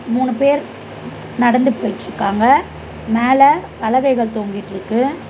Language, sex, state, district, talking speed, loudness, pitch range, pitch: Tamil, female, Tamil Nadu, Chennai, 80 wpm, -16 LUFS, 225-270 Hz, 250 Hz